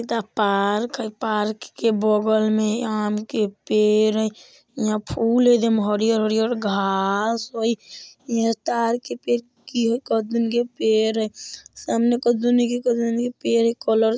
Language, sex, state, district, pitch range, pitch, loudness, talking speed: Bajjika, female, Bihar, Vaishali, 215-235 Hz, 225 Hz, -21 LUFS, 125 wpm